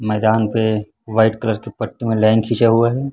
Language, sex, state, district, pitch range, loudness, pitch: Hindi, male, Chhattisgarh, Raipur, 110-115 Hz, -17 LUFS, 110 Hz